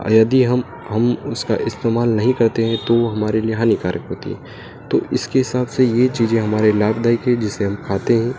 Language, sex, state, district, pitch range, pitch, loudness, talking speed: Hindi, male, Madhya Pradesh, Dhar, 110-125 Hz, 115 Hz, -18 LUFS, 205 wpm